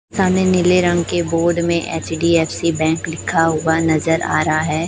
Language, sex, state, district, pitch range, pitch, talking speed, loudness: Hindi, male, Chhattisgarh, Raipur, 160-175 Hz, 165 Hz, 185 wpm, -17 LUFS